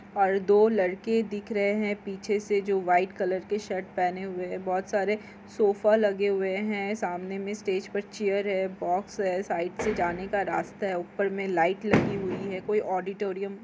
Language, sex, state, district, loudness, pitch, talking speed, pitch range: Hindi, female, Chhattisgarh, Korba, -28 LUFS, 195 Hz, 190 wpm, 190-205 Hz